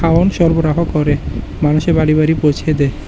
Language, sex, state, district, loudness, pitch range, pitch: Bengali, male, Tripura, West Tripura, -14 LUFS, 150-165 Hz, 155 Hz